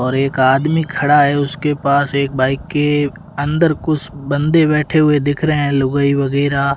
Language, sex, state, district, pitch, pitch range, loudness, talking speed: Hindi, male, Rajasthan, Jaisalmer, 145 Hz, 140-150 Hz, -15 LUFS, 175 wpm